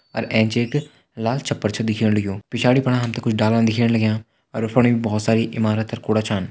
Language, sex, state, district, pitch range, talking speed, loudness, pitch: Hindi, male, Uttarakhand, Tehri Garhwal, 110-120 Hz, 220 wpm, -20 LUFS, 115 Hz